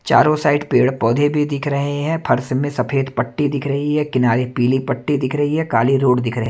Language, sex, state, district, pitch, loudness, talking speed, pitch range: Hindi, male, Maharashtra, Gondia, 140 Hz, -18 LUFS, 230 wpm, 125-145 Hz